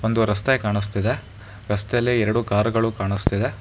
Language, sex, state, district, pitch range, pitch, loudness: Kannada, male, Karnataka, Bangalore, 105-115 Hz, 105 Hz, -22 LUFS